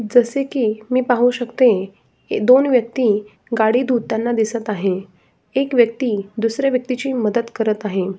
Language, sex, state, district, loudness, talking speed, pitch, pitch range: Marathi, female, Maharashtra, Sindhudurg, -18 LUFS, 130 wpm, 235 Hz, 215-250 Hz